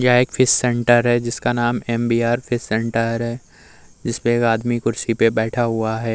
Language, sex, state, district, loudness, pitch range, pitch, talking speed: Hindi, male, Uttar Pradesh, Muzaffarnagar, -19 LUFS, 115-120 Hz, 120 Hz, 195 wpm